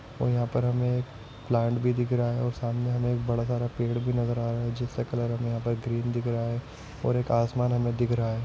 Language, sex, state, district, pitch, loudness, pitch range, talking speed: Hindi, male, Maharashtra, Sindhudurg, 120 Hz, -28 LUFS, 115-125 Hz, 255 wpm